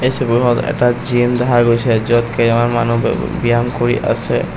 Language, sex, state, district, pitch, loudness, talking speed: Assamese, male, Assam, Kamrup Metropolitan, 120 Hz, -15 LUFS, 145 wpm